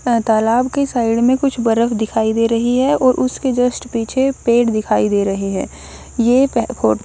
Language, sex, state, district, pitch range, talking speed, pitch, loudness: Hindi, male, Odisha, Nuapada, 225-255 Hz, 195 wpm, 235 Hz, -16 LUFS